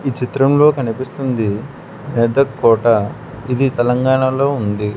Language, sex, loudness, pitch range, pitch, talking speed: Telugu, male, -16 LUFS, 115-135 Hz, 130 Hz, 85 wpm